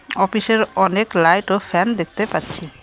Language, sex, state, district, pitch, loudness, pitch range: Bengali, female, West Bengal, Cooch Behar, 195 Hz, -18 LUFS, 170-215 Hz